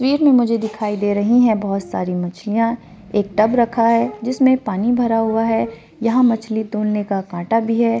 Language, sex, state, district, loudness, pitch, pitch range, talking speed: Hindi, female, Rajasthan, Churu, -18 LUFS, 225 Hz, 205-235 Hz, 185 wpm